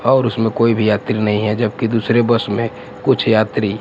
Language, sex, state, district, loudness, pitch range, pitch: Hindi, male, Gujarat, Gandhinagar, -16 LUFS, 105-120 Hz, 110 Hz